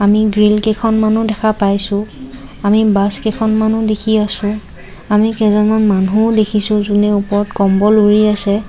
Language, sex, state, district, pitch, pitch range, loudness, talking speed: Assamese, female, Assam, Kamrup Metropolitan, 210 Hz, 205-215 Hz, -13 LUFS, 130 wpm